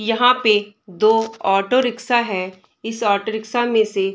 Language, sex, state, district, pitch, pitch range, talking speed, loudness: Hindi, female, Bihar, Darbhanga, 220 Hz, 200-235 Hz, 175 wpm, -18 LUFS